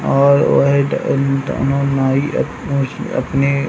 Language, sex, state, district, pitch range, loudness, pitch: Hindi, male, Uttar Pradesh, Hamirpur, 135-140 Hz, -16 LUFS, 140 Hz